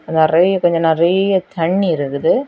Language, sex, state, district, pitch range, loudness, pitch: Tamil, female, Tamil Nadu, Kanyakumari, 160-190 Hz, -15 LUFS, 170 Hz